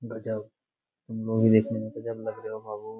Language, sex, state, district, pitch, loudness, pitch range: Hindi, male, Bihar, Jamui, 110 Hz, -28 LUFS, 110-115 Hz